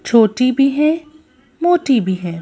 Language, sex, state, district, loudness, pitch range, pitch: Hindi, female, Madhya Pradesh, Bhopal, -15 LUFS, 230-310 Hz, 270 Hz